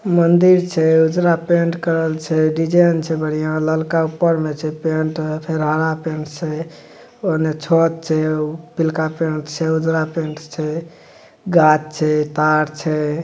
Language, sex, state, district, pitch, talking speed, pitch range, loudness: Maithili, male, Bihar, Madhepura, 160 Hz, 140 wpm, 155-165 Hz, -18 LUFS